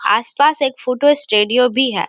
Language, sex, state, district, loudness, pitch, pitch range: Hindi, female, Bihar, Samastipur, -15 LUFS, 250 Hz, 235-285 Hz